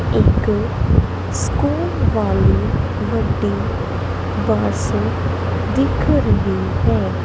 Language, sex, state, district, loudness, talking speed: Punjabi, female, Punjab, Kapurthala, -18 LUFS, 65 wpm